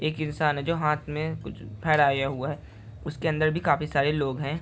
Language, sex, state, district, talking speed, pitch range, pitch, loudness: Hindi, male, Chhattisgarh, Jashpur, 220 wpm, 140-155 Hz, 150 Hz, -26 LUFS